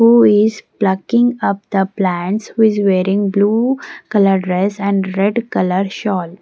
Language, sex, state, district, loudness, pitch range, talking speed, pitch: English, female, Odisha, Nuapada, -15 LUFS, 190-220 Hz, 140 wpm, 200 Hz